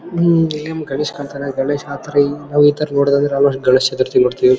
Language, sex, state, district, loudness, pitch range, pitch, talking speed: Kannada, male, Karnataka, Bellary, -16 LUFS, 140-155 Hz, 145 Hz, 195 wpm